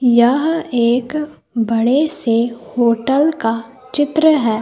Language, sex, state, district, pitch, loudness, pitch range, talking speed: Hindi, female, Jharkhand, Palamu, 250 Hz, -16 LUFS, 230-295 Hz, 105 wpm